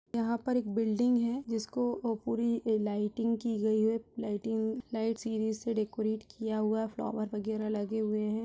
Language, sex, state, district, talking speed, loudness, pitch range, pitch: Hindi, female, Bihar, Purnia, 170 wpm, -33 LUFS, 215-230 Hz, 220 Hz